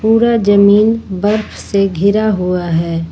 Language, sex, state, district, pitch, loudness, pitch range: Hindi, female, Jharkhand, Ranchi, 200 Hz, -13 LUFS, 180-215 Hz